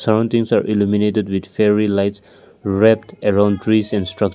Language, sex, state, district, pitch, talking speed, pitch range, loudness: English, male, Nagaland, Kohima, 105 Hz, 165 wpm, 100-110 Hz, -17 LUFS